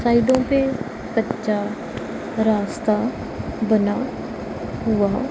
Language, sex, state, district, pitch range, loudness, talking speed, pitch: Hindi, female, Punjab, Pathankot, 210-255 Hz, -22 LUFS, 70 wpm, 220 Hz